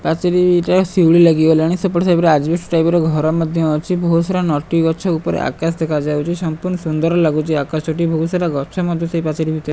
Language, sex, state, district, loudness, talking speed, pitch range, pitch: Odia, male, Odisha, Malkangiri, -16 LUFS, 195 wpm, 160-175 Hz, 165 Hz